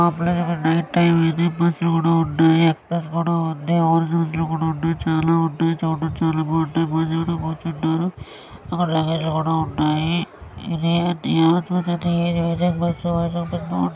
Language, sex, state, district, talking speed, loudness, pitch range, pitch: Telugu, female, Andhra Pradesh, Srikakulam, 75 wpm, -20 LUFS, 160-170 Hz, 165 Hz